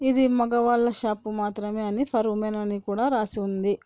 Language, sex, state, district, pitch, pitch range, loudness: Telugu, female, Andhra Pradesh, Anantapur, 215 Hz, 210-240 Hz, -25 LUFS